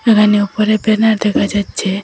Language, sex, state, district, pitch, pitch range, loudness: Bengali, female, Assam, Hailakandi, 210 Hz, 205-215 Hz, -14 LUFS